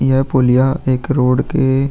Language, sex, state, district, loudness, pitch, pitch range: Hindi, male, Uttar Pradesh, Jalaun, -15 LUFS, 130 Hz, 130-135 Hz